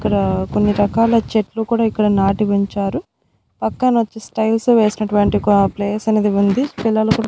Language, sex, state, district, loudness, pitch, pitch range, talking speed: Telugu, female, Andhra Pradesh, Annamaya, -17 LUFS, 215 Hz, 205-225 Hz, 150 wpm